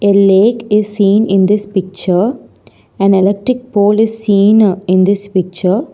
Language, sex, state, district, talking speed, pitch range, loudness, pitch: English, female, Telangana, Hyderabad, 150 wpm, 190-215 Hz, -12 LUFS, 200 Hz